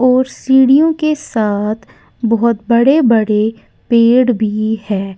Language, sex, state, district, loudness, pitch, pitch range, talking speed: Hindi, female, Uttar Pradesh, Lalitpur, -13 LUFS, 230 Hz, 215-255 Hz, 115 wpm